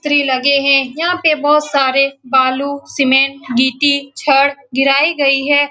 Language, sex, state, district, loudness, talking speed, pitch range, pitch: Hindi, female, Bihar, Saran, -13 LUFS, 135 wpm, 270-290 Hz, 275 Hz